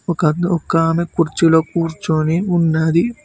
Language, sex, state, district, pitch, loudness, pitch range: Telugu, male, Telangana, Mahabubabad, 165 Hz, -16 LUFS, 160-170 Hz